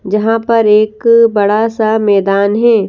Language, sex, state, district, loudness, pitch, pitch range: Hindi, female, Madhya Pradesh, Bhopal, -11 LUFS, 215 Hz, 205-225 Hz